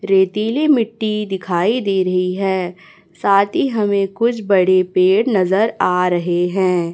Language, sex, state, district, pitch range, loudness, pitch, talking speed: Hindi, female, Chhattisgarh, Raipur, 185-215 Hz, -16 LUFS, 195 Hz, 140 wpm